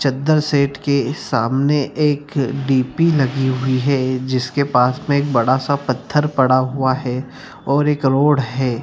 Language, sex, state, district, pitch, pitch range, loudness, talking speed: Hindi, male, Bihar, Jamui, 135 Hz, 130-140 Hz, -17 LUFS, 155 wpm